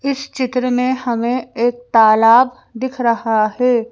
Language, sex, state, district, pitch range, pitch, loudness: Hindi, female, Madhya Pradesh, Bhopal, 230-255 Hz, 245 Hz, -16 LUFS